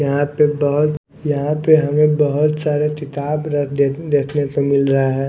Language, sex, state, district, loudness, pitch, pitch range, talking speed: Hindi, male, Odisha, Nuapada, -17 LUFS, 145 Hz, 140-150 Hz, 180 wpm